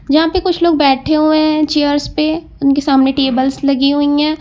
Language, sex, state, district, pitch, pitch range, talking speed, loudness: Hindi, female, Uttar Pradesh, Lucknow, 290 Hz, 275-310 Hz, 205 wpm, -13 LUFS